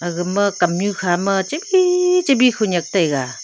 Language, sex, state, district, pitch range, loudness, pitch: Wancho, female, Arunachal Pradesh, Longding, 175-265 Hz, -17 LUFS, 195 Hz